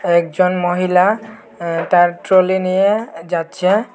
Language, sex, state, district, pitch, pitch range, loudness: Bengali, male, Tripura, West Tripura, 180 Hz, 175-190 Hz, -16 LUFS